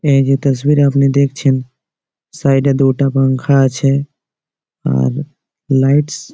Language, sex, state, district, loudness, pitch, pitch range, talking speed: Bengali, male, West Bengal, Malda, -14 LUFS, 135 Hz, 135-140 Hz, 125 wpm